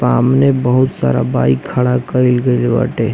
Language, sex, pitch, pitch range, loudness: Bhojpuri, male, 125 Hz, 115-130 Hz, -14 LUFS